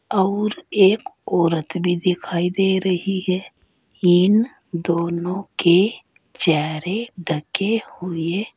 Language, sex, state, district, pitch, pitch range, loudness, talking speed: Hindi, female, Uttar Pradesh, Saharanpur, 185 Hz, 170-200 Hz, -20 LUFS, 100 wpm